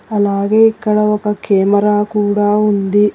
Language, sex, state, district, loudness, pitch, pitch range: Telugu, female, Telangana, Hyderabad, -13 LUFS, 210 Hz, 205-210 Hz